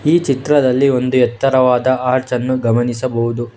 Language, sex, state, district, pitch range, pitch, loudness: Kannada, male, Karnataka, Bangalore, 125-130 Hz, 130 Hz, -15 LUFS